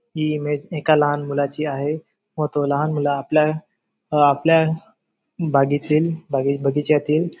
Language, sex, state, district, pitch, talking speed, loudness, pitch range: Marathi, male, Maharashtra, Chandrapur, 150 Hz, 115 wpm, -20 LUFS, 145-160 Hz